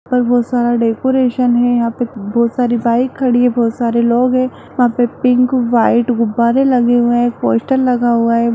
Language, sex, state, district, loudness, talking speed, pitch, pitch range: Hindi, female, Bihar, Saharsa, -14 LUFS, 205 wpm, 240 Hz, 235-250 Hz